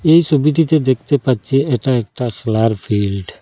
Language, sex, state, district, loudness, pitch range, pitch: Bengali, male, Assam, Hailakandi, -16 LUFS, 110-145 Hz, 130 Hz